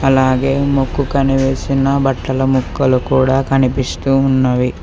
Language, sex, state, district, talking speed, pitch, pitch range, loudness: Telugu, male, Telangana, Hyderabad, 100 wpm, 135 Hz, 130-135 Hz, -15 LUFS